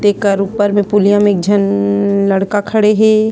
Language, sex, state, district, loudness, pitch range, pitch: Chhattisgarhi, female, Chhattisgarh, Sarguja, -12 LUFS, 200-205 Hz, 205 Hz